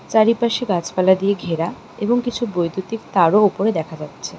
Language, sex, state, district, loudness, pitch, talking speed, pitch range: Bengali, female, West Bengal, Darjeeling, -19 LUFS, 200 Hz, 150 wpm, 175-225 Hz